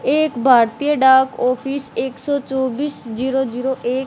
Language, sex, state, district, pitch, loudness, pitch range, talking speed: Hindi, male, Haryana, Rohtak, 265 Hz, -18 LUFS, 255-275 Hz, 145 wpm